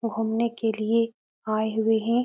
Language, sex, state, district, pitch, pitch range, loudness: Hindi, female, Uttar Pradesh, Etah, 225 Hz, 220-230 Hz, -25 LUFS